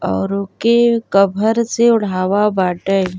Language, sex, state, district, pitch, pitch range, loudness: Bhojpuri, female, Uttar Pradesh, Gorakhpur, 200 Hz, 185-230 Hz, -15 LUFS